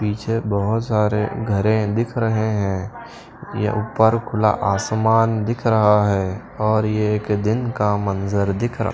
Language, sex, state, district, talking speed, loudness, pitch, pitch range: Hindi, male, Punjab, Pathankot, 150 wpm, -20 LUFS, 110 Hz, 105-115 Hz